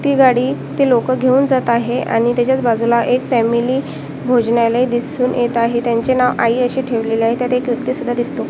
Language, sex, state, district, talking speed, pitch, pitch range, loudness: Marathi, female, Maharashtra, Washim, 195 wpm, 245 Hz, 235-255 Hz, -16 LUFS